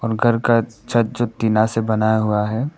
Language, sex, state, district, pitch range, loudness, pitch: Hindi, male, Arunachal Pradesh, Papum Pare, 110-120 Hz, -19 LUFS, 115 Hz